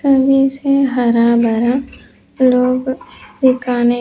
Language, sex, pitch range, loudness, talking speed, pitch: Hindi, female, 240-270 Hz, -14 LUFS, 105 wpm, 255 Hz